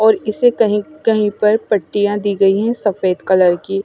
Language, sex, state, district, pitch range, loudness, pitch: Hindi, female, Chandigarh, Chandigarh, 195-215 Hz, -15 LUFS, 205 Hz